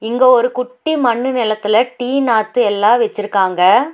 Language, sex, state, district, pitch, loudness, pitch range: Tamil, female, Tamil Nadu, Nilgiris, 240 Hz, -14 LUFS, 215-250 Hz